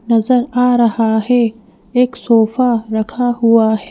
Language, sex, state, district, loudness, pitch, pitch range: Hindi, female, Madhya Pradesh, Bhopal, -14 LUFS, 230 Hz, 220-245 Hz